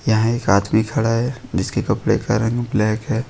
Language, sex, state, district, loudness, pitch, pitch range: Hindi, male, Jharkhand, Ranchi, -19 LUFS, 115 Hz, 110-120 Hz